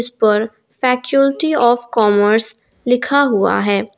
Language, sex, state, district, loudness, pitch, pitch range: Hindi, female, Jharkhand, Garhwa, -15 LUFS, 235 Hz, 215-255 Hz